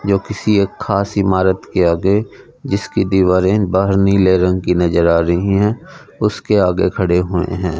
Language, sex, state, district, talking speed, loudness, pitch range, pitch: Hindi, male, Punjab, Fazilka, 170 wpm, -15 LUFS, 90-100 Hz, 95 Hz